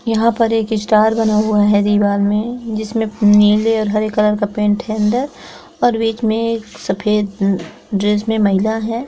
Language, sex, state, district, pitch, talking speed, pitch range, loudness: Hindi, female, Andhra Pradesh, Krishna, 215 Hz, 180 wpm, 210-225 Hz, -16 LUFS